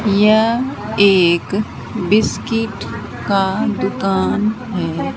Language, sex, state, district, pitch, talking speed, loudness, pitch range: Hindi, female, Bihar, Katihar, 200 Hz, 70 wpm, -17 LUFS, 180-220 Hz